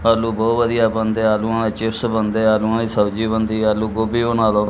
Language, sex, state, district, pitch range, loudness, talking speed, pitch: Punjabi, male, Punjab, Kapurthala, 110-115 Hz, -18 LUFS, 205 wpm, 110 Hz